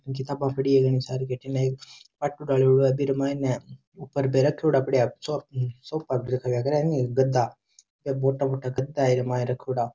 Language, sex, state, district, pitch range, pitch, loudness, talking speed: Rajasthani, male, Rajasthan, Churu, 125-140 Hz, 130 Hz, -25 LUFS, 135 wpm